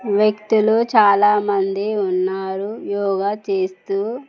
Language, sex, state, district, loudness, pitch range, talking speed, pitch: Telugu, female, Telangana, Mahabubabad, -18 LUFS, 195-220 Hz, 70 wpm, 205 Hz